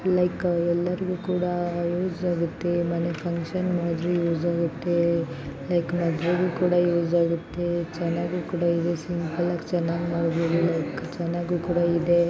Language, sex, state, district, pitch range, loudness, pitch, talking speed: Kannada, female, Karnataka, Bijapur, 170-175 Hz, -25 LUFS, 170 Hz, 125 wpm